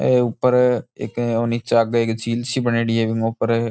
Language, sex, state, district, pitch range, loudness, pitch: Rajasthani, male, Rajasthan, Churu, 115-120 Hz, -20 LUFS, 115 Hz